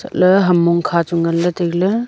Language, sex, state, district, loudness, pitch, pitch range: Wancho, female, Arunachal Pradesh, Longding, -15 LUFS, 175 Hz, 170-185 Hz